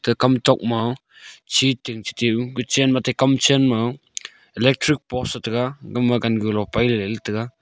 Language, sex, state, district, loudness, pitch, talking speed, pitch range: Wancho, male, Arunachal Pradesh, Longding, -20 LUFS, 125 Hz, 165 wpm, 115-130 Hz